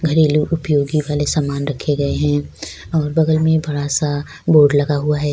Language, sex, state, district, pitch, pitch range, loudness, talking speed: Urdu, female, Bihar, Saharsa, 150 Hz, 145-155 Hz, -17 LUFS, 170 wpm